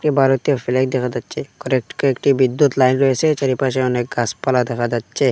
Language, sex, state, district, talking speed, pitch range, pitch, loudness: Bengali, male, Assam, Hailakandi, 145 wpm, 125-135 Hz, 130 Hz, -18 LUFS